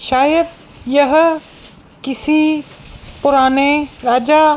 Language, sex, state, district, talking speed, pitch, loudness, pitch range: Hindi, female, Madhya Pradesh, Dhar, 65 wpm, 290 Hz, -14 LUFS, 270-310 Hz